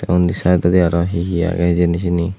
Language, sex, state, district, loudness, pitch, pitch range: Chakma, male, Tripura, West Tripura, -16 LUFS, 85 Hz, 85-90 Hz